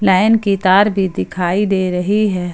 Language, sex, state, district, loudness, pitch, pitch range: Hindi, male, Jharkhand, Ranchi, -15 LUFS, 195 Hz, 185-205 Hz